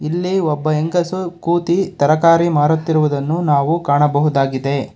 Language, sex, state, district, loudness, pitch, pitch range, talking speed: Kannada, male, Karnataka, Bangalore, -16 LUFS, 155 Hz, 145-170 Hz, 95 wpm